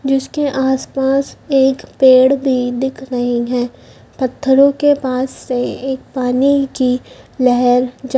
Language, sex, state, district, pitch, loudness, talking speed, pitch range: Hindi, male, Madhya Pradesh, Dhar, 265 Hz, -15 LUFS, 125 wpm, 250-270 Hz